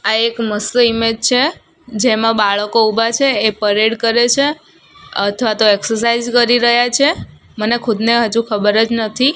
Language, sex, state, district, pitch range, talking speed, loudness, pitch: Gujarati, female, Gujarat, Gandhinagar, 220-245 Hz, 155 wpm, -14 LUFS, 230 Hz